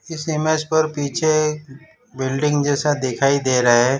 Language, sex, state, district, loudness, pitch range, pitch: Hindi, male, Gujarat, Valsad, -19 LUFS, 135-155 Hz, 145 Hz